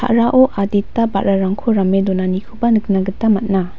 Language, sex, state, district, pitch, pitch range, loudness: Garo, female, Meghalaya, West Garo Hills, 200 Hz, 195-230 Hz, -16 LUFS